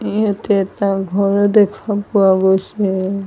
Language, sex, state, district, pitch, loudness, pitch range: Assamese, female, Assam, Sonitpur, 200 Hz, -16 LUFS, 195-205 Hz